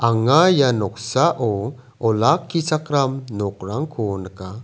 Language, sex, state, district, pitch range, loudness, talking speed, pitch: Garo, male, Meghalaya, South Garo Hills, 105-145 Hz, -20 LUFS, 80 wpm, 120 Hz